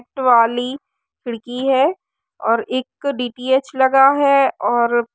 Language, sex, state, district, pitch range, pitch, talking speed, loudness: Hindi, female, Uttar Pradesh, Varanasi, 240-280 Hz, 260 Hz, 130 wpm, -17 LUFS